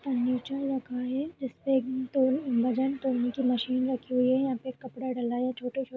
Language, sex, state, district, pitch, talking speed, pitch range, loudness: Hindi, female, Uttar Pradesh, Budaun, 255 Hz, 220 wpm, 250-265 Hz, -29 LUFS